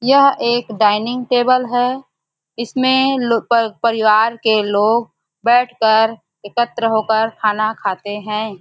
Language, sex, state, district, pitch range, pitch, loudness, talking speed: Hindi, female, Chhattisgarh, Bastar, 215-245 Hz, 225 Hz, -16 LUFS, 120 wpm